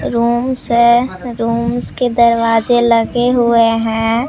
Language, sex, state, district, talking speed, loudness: Hindi, female, Bihar, Katihar, 110 wpm, -13 LUFS